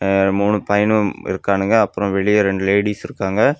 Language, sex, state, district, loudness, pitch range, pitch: Tamil, male, Tamil Nadu, Kanyakumari, -17 LUFS, 95-105 Hz, 100 Hz